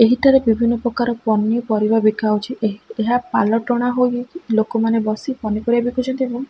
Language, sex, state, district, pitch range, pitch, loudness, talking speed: Odia, female, Odisha, Khordha, 220-245 Hz, 235 Hz, -18 LUFS, 150 wpm